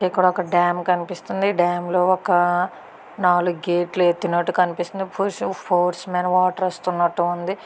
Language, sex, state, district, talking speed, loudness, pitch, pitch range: Telugu, female, Andhra Pradesh, Guntur, 125 wpm, -21 LUFS, 180 Hz, 175-185 Hz